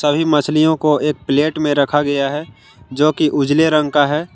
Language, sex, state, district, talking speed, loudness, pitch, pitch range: Hindi, male, Jharkhand, Ranchi, 205 wpm, -15 LUFS, 150 Hz, 145-155 Hz